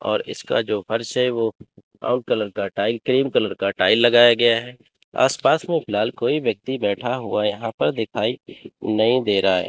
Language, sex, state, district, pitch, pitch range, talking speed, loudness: Hindi, male, Chandigarh, Chandigarh, 115 Hz, 105-120 Hz, 165 wpm, -20 LUFS